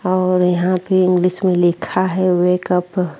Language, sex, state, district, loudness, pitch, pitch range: Hindi, female, Uttar Pradesh, Jyotiba Phule Nagar, -16 LUFS, 180 Hz, 180-185 Hz